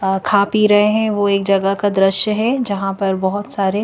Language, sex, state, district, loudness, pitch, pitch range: Hindi, female, Madhya Pradesh, Bhopal, -16 LUFS, 200 Hz, 195-210 Hz